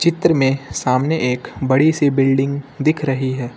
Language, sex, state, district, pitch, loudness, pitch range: Hindi, male, Uttar Pradesh, Lucknow, 135 Hz, -17 LUFS, 130-150 Hz